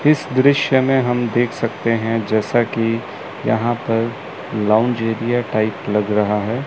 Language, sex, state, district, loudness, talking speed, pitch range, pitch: Hindi, male, Chandigarh, Chandigarh, -18 LUFS, 155 wpm, 110-120 Hz, 115 Hz